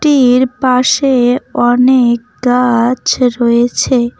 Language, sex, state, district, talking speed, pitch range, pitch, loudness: Bengali, female, West Bengal, Cooch Behar, 70 wpm, 240-260 Hz, 250 Hz, -11 LUFS